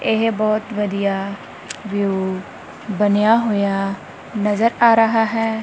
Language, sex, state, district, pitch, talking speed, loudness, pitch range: Punjabi, female, Punjab, Kapurthala, 210 Hz, 105 wpm, -18 LUFS, 200-225 Hz